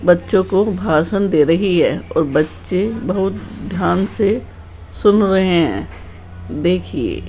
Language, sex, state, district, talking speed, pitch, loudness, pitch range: Hindi, male, Rajasthan, Jaipur, 125 wpm, 180 Hz, -17 LUFS, 150-195 Hz